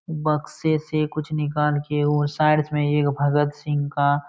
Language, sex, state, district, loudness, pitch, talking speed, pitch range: Hindi, male, Uttar Pradesh, Jalaun, -22 LUFS, 150 Hz, 180 wpm, 145-155 Hz